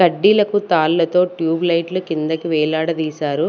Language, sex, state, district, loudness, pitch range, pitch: Telugu, female, Andhra Pradesh, Sri Satya Sai, -17 LUFS, 160-180 Hz, 165 Hz